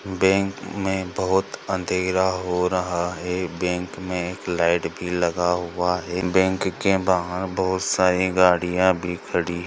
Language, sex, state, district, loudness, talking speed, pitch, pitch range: Hindi, male, Andhra Pradesh, Chittoor, -22 LUFS, 150 wpm, 90 Hz, 90-95 Hz